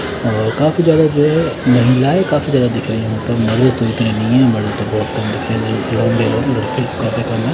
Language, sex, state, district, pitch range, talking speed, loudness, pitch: Hindi, male, Bihar, Katihar, 110-135 Hz, 110 wpm, -15 LUFS, 120 Hz